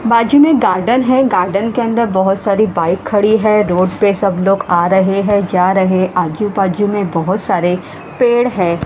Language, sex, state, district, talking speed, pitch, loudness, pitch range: Hindi, female, Haryana, Rohtak, 195 wpm, 200 Hz, -13 LUFS, 185-220 Hz